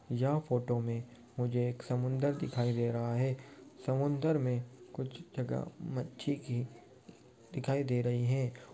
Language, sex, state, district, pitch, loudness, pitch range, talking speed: Hindi, male, Bihar, Kishanganj, 125 Hz, -35 LUFS, 120-140 Hz, 135 wpm